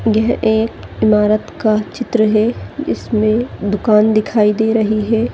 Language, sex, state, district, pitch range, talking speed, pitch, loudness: Hindi, female, Chhattisgarh, Sarguja, 215-225 Hz, 145 wpm, 220 Hz, -15 LUFS